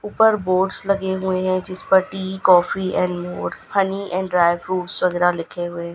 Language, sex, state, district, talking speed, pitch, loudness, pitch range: Hindi, female, Gujarat, Gandhinagar, 160 wpm, 185 Hz, -20 LUFS, 180-190 Hz